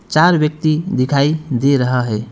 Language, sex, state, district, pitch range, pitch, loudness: Hindi, male, West Bengal, Alipurduar, 125-155 Hz, 140 Hz, -15 LUFS